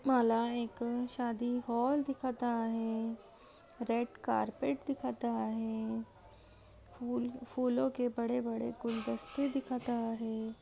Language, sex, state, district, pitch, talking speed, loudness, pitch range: Marathi, female, Maharashtra, Solapur, 235 Hz, 100 wpm, -36 LUFS, 225-250 Hz